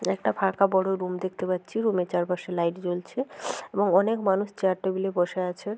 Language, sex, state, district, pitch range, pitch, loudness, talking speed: Bengali, female, West Bengal, Jhargram, 180-200 Hz, 190 Hz, -26 LUFS, 185 wpm